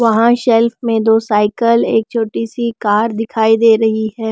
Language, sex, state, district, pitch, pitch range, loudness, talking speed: Hindi, female, Odisha, Nuapada, 225 Hz, 220-230 Hz, -14 LUFS, 180 wpm